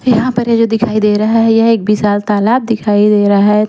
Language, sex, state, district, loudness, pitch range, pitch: Hindi, female, Bihar, Patna, -11 LUFS, 210-230 Hz, 215 Hz